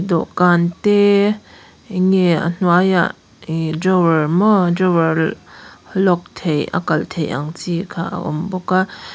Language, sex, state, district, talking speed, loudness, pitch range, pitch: Mizo, female, Mizoram, Aizawl, 145 wpm, -17 LUFS, 165-190 Hz, 180 Hz